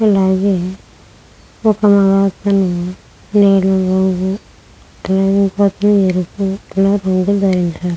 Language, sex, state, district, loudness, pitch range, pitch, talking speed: Telugu, female, Andhra Pradesh, Krishna, -14 LUFS, 185-200 Hz, 195 Hz, 45 wpm